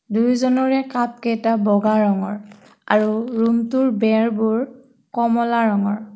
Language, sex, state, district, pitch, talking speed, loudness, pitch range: Assamese, female, Assam, Kamrup Metropolitan, 230 Hz, 90 wpm, -19 LUFS, 215-240 Hz